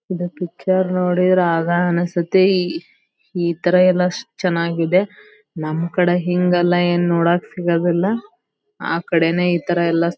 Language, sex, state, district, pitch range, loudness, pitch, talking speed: Kannada, female, Karnataka, Belgaum, 170-180 Hz, -18 LUFS, 175 Hz, 100 wpm